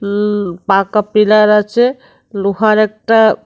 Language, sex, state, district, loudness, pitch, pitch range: Bengali, female, Tripura, West Tripura, -13 LUFS, 210 Hz, 200-215 Hz